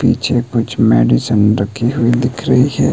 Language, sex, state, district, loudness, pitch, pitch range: Hindi, male, Himachal Pradesh, Shimla, -14 LUFS, 120 Hz, 105-120 Hz